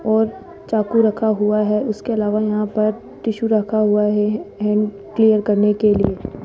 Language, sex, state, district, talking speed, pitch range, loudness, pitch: Hindi, female, Rajasthan, Jaipur, 175 wpm, 210-220 Hz, -18 LUFS, 215 Hz